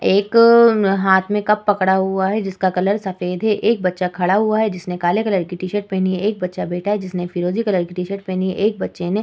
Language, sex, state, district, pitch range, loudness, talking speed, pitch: Hindi, female, Uttar Pradesh, Muzaffarnagar, 185-210 Hz, -18 LUFS, 255 wpm, 190 Hz